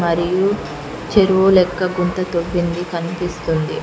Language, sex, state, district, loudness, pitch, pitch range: Telugu, female, Telangana, Mahabubabad, -18 LUFS, 180 Hz, 170-185 Hz